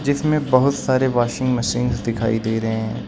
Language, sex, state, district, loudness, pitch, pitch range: Hindi, male, Uttar Pradesh, Lucknow, -20 LUFS, 125 Hz, 115-130 Hz